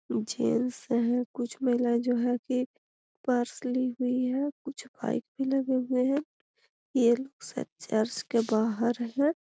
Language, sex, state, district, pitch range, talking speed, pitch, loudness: Magahi, female, Bihar, Gaya, 240-260 Hz, 150 wpm, 250 Hz, -29 LUFS